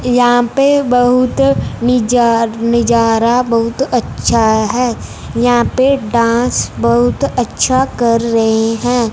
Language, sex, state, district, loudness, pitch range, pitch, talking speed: Hindi, female, Punjab, Fazilka, -13 LUFS, 230-250 Hz, 240 Hz, 105 wpm